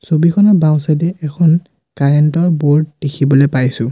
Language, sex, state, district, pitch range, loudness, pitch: Assamese, male, Assam, Sonitpur, 140-170 Hz, -13 LUFS, 155 Hz